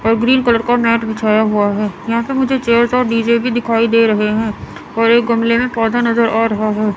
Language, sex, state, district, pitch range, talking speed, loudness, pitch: Hindi, female, Chandigarh, Chandigarh, 220-235 Hz, 230 wpm, -14 LUFS, 230 Hz